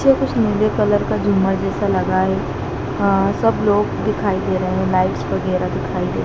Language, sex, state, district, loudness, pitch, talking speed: Hindi, female, Madhya Pradesh, Dhar, -18 LUFS, 190 Hz, 190 wpm